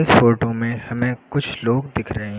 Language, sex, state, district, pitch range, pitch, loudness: Hindi, male, Uttar Pradesh, Lucknow, 115-125 Hz, 115 Hz, -20 LUFS